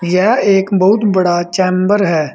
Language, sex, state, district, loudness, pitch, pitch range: Hindi, male, Uttar Pradesh, Saharanpur, -13 LUFS, 185 Hz, 175-200 Hz